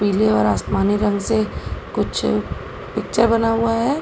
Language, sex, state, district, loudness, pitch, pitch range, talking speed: Hindi, female, Uttar Pradesh, Gorakhpur, -19 LUFS, 215 Hz, 200-230 Hz, 150 wpm